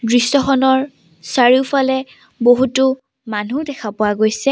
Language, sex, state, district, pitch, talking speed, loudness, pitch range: Assamese, female, Assam, Sonitpur, 260 Hz, 95 wpm, -16 LUFS, 215-270 Hz